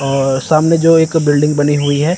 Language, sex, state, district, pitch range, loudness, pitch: Hindi, male, Chandigarh, Chandigarh, 145-160 Hz, -12 LUFS, 150 Hz